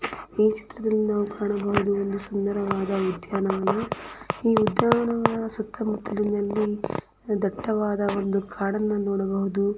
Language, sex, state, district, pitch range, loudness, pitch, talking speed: Kannada, female, Karnataka, Chamarajanagar, 200-215 Hz, -26 LUFS, 205 Hz, 85 wpm